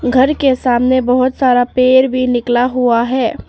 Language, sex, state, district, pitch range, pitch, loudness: Hindi, female, Arunachal Pradesh, Papum Pare, 245-260 Hz, 255 Hz, -13 LUFS